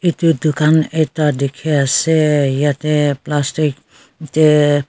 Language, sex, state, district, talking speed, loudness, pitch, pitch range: Nagamese, female, Nagaland, Kohima, 85 wpm, -15 LUFS, 150 Hz, 145-155 Hz